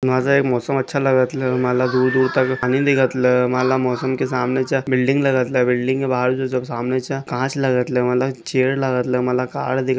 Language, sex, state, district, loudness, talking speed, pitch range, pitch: Marathi, male, Maharashtra, Sindhudurg, -19 LUFS, 175 wpm, 125-130 Hz, 130 Hz